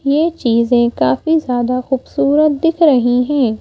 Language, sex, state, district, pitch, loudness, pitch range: Hindi, female, Madhya Pradesh, Bhopal, 265 Hz, -14 LUFS, 245-310 Hz